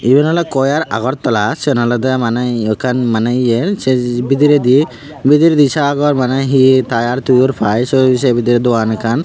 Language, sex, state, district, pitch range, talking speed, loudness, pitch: Chakma, male, Tripura, Unakoti, 120-140 Hz, 145 wpm, -13 LUFS, 130 Hz